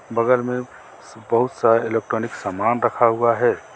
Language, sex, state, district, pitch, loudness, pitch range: Hindi, male, Jharkhand, Garhwa, 115 Hz, -20 LUFS, 115-125 Hz